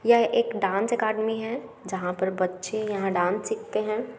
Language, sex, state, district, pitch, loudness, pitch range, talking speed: Hindi, female, Bihar, Gaya, 215 Hz, -26 LUFS, 190-230 Hz, 170 wpm